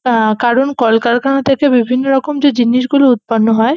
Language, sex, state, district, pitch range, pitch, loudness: Bengali, female, West Bengal, North 24 Parganas, 235-275 Hz, 250 Hz, -12 LUFS